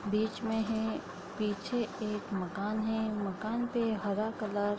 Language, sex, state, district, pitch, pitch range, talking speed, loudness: Hindi, female, Bihar, Bhagalpur, 215 Hz, 205-220 Hz, 150 wpm, -34 LUFS